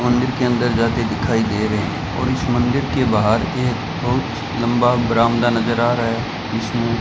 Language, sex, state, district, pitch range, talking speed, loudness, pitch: Hindi, male, Rajasthan, Bikaner, 115-120 Hz, 195 wpm, -18 LUFS, 120 Hz